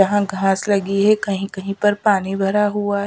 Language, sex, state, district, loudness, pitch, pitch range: Hindi, female, Chhattisgarh, Raipur, -18 LUFS, 200 Hz, 195-205 Hz